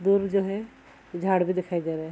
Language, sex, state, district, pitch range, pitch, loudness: Hindi, female, Bihar, Saharsa, 175-195 Hz, 185 Hz, -26 LUFS